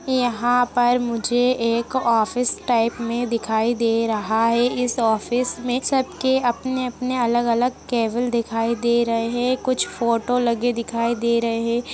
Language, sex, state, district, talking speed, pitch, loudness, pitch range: Hindi, female, Chhattisgarh, Jashpur, 145 wpm, 240 Hz, -21 LUFS, 230-245 Hz